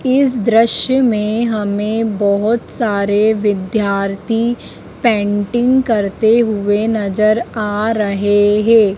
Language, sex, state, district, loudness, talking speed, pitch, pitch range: Hindi, female, Madhya Pradesh, Dhar, -15 LUFS, 95 wpm, 215 Hz, 205-230 Hz